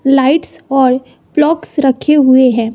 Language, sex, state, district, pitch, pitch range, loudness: Hindi, female, Bihar, West Champaran, 270 Hz, 260-300 Hz, -12 LUFS